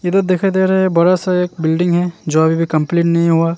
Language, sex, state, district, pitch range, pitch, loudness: Hindi, male, Uttarakhand, Tehri Garhwal, 165-185 Hz, 175 Hz, -15 LUFS